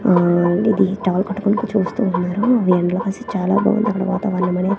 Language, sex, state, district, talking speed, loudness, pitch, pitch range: Telugu, female, Andhra Pradesh, Manyam, 125 wpm, -18 LUFS, 195 Hz, 180-205 Hz